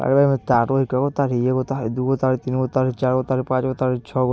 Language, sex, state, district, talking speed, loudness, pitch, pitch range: Bajjika, male, Bihar, Vaishali, 265 wpm, -20 LUFS, 130 Hz, 130-135 Hz